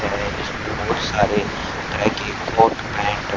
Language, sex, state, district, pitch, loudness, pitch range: Hindi, male, Haryana, Charkhi Dadri, 105 Hz, -21 LUFS, 100-110 Hz